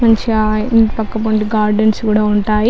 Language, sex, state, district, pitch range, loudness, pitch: Telugu, female, Andhra Pradesh, Chittoor, 215-220 Hz, -14 LUFS, 215 Hz